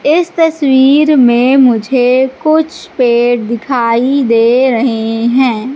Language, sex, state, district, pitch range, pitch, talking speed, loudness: Hindi, female, Madhya Pradesh, Katni, 235-280 Hz, 255 Hz, 105 wpm, -10 LUFS